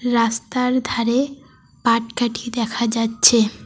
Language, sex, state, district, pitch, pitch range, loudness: Bengali, female, West Bengal, Alipurduar, 235 Hz, 230-245 Hz, -19 LUFS